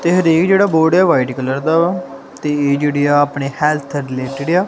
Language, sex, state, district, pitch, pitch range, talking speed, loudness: Punjabi, male, Punjab, Kapurthala, 150 Hz, 140-170 Hz, 190 wpm, -15 LUFS